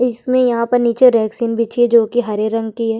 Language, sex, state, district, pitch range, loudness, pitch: Hindi, female, Chhattisgarh, Sukma, 225-245 Hz, -15 LUFS, 235 Hz